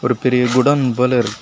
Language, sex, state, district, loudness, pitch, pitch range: Tamil, male, Tamil Nadu, Kanyakumari, -15 LUFS, 125 Hz, 125-130 Hz